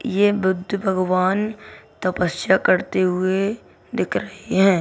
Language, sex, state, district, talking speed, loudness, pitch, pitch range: Hindi, female, Bihar, Gaya, 110 wpm, -21 LUFS, 190 Hz, 185-205 Hz